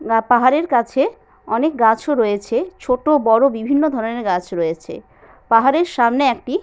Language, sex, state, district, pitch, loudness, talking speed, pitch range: Bengali, female, West Bengal, Jalpaiguri, 250 Hz, -17 LUFS, 165 wpm, 225-295 Hz